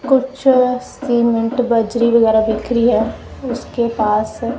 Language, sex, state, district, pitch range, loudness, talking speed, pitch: Hindi, female, Punjab, Kapurthala, 225-250 Hz, -16 LUFS, 120 wpm, 235 Hz